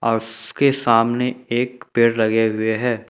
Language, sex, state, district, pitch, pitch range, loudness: Hindi, male, Jharkhand, Ranchi, 115 Hz, 110-125 Hz, -19 LUFS